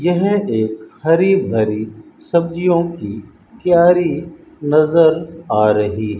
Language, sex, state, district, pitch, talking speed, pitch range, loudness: Hindi, male, Rajasthan, Bikaner, 160 Hz, 105 wpm, 110-170 Hz, -16 LUFS